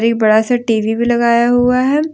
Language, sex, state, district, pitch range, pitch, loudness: Hindi, female, Jharkhand, Deoghar, 225-245 Hz, 235 Hz, -13 LUFS